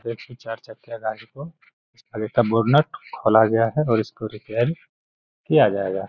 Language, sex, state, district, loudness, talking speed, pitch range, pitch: Hindi, male, Bihar, Gaya, -21 LUFS, 150 wpm, 110-125 Hz, 115 Hz